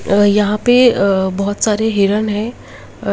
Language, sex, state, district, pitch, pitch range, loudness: Hindi, female, Bihar, Begusarai, 210 Hz, 200-215 Hz, -14 LUFS